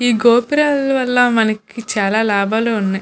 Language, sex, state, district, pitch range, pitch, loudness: Telugu, female, Andhra Pradesh, Visakhapatnam, 215-245 Hz, 230 Hz, -15 LUFS